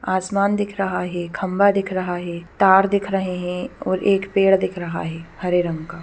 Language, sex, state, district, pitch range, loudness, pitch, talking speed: Hindi, female, Bihar, Gopalganj, 175-195 Hz, -20 LUFS, 185 Hz, 210 wpm